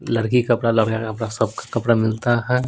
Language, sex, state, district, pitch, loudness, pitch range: Hindi, male, Bihar, Patna, 115 Hz, -20 LUFS, 110-120 Hz